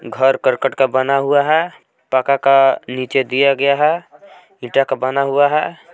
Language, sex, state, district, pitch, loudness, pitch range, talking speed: Hindi, male, Jharkhand, Palamu, 135 Hz, -16 LUFS, 135-145 Hz, 170 wpm